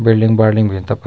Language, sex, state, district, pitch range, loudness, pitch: Garhwali, male, Uttarakhand, Tehri Garhwal, 105-110 Hz, -13 LUFS, 110 Hz